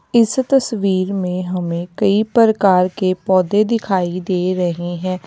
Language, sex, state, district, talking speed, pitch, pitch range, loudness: Hindi, female, Uttar Pradesh, Lalitpur, 135 wpm, 185 Hz, 180-215 Hz, -17 LUFS